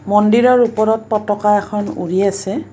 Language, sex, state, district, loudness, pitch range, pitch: Assamese, female, Assam, Kamrup Metropolitan, -15 LUFS, 200-220 Hz, 210 Hz